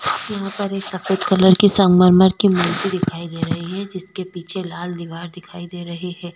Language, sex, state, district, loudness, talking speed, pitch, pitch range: Hindi, female, Goa, North and South Goa, -18 LUFS, 200 wpm, 180 Hz, 175-190 Hz